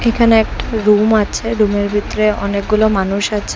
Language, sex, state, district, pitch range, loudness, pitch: Bengali, female, Assam, Hailakandi, 205-220 Hz, -15 LUFS, 215 Hz